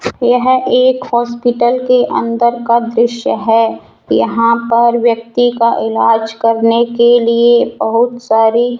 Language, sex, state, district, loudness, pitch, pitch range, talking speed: Hindi, female, Rajasthan, Jaipur, -12 LUFS, 235 Hz, 230-245 Hz, 130 wpm